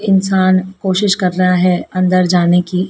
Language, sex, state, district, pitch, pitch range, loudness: Hindi, female, Madhya Pradesh, Dhar, 185 Hz, 180-190 Hz, -13 LUFS